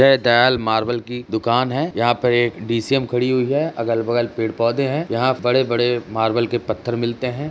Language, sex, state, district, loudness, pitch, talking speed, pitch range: Hindi, male, Uttar Pradesh, Jalaun, -19 LUFS, 120 Hz, 210 wpm, 115-130 Hz